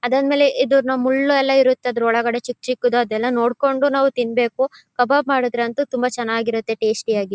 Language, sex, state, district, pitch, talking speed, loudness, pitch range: Kannada, female, Karnataka, Mysore, 245 Hz, 180 wpm, -18 LUFS, 235-270 Hz